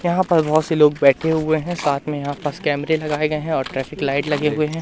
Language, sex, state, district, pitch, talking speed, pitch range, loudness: Hindi, male, Madhya Pradesh, Katni, 150 Hz, 275 wpm, 145-160 Hz, -19 LUFS